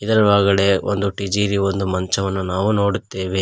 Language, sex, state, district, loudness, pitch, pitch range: Kannada, male, Karnataka, Koppal, -19 LUFS, 100 Hz, 95-100 Hz